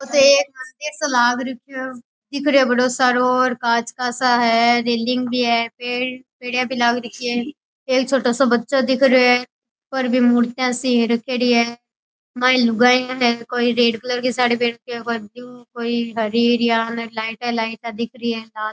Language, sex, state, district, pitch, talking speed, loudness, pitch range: Rajasthani, female, Rajasthan, Churu, 245 Hz, 190 wpm, -18 LUFS, 235-255 Hz